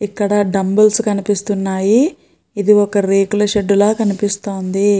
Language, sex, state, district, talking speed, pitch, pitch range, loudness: Telugu, female, Andhra Pradesh, Guntur, 110 wpm, 205 Hz, 200-210 Hz, -15 LUFS